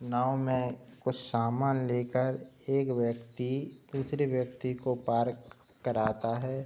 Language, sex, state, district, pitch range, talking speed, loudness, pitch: Hindi, male, Uttar Pradesh, Budaun, 120-130 Hz, 125 wpm, -32 LUFS, 125 Hz